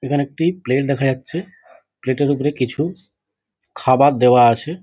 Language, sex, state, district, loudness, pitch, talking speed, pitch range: Bengali, male, West Bengal, Jhargram, -17 LUFS, 140 Hz, 160 wpm, 130-155 Hz